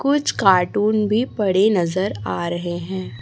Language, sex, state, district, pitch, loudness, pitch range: Hindi, female, Chhattisgarh, Raipur, 190 Hz, -19 LUFS, 180-215 Hz